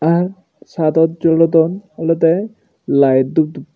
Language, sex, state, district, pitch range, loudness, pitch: Chakma, male, Tripura, Unakoti, 155-175 Hz, -15 LUFS, 165 Hz